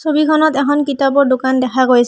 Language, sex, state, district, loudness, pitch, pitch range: Assamese, female, Assam, Hailakandi, -14 LUFS, 280 Hz, 260-300 Hz